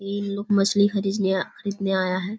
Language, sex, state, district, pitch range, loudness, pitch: Hindi, female, Bihar, Kishanganj, 190-200 Hz, -23 LUFS, 200 Hz